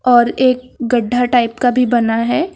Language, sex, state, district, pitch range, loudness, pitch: Hindi, female, Uttar Pradesh, Lucknow, 240-250 Hz, -15 LUFS, 245 Hz